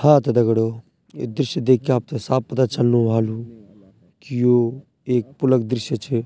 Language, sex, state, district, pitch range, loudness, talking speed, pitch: Garhwali, male, Uttarakhand, Tehri Garhwal, 115-130 Hz, -20 LUFS, 170 wpm, 120 Hz